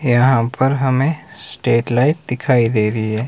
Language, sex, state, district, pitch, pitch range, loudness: Hindi, male, Himachal Pradesh, Shimla, 125 Hz, 115-135 Hz, -16 LUFS